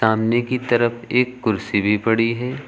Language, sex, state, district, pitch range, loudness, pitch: Hindi, male, Uttar Pradesh, Lucknow, 110-125 Hz, -20 LUFS, 120 Hz